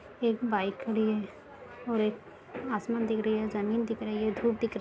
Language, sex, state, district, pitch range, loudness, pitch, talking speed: Hindi, female, Bihar, Jahanabad, 215-230 Hz, -31 LUFS, 220 Hz, 225 wpm